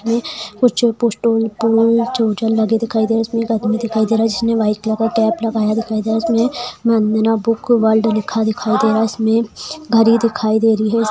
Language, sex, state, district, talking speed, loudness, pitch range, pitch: Hindi, female, Bihar, Lakhisarai, 190 wpm, -16 LUFS, 220-230 Hz, 225 Hz